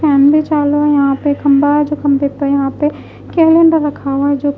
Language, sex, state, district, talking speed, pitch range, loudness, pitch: Hindi, female, Bihar, West Champaran, 250 wpm, 280-295 Hz, -13 LUFS, 290 Hz